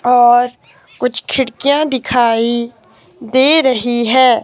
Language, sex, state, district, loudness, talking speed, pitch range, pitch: Hindi, female, Himachal Pradesh, Shimla, -13 LUFS, 95 wpm, 240-260 Hz, 245 Hz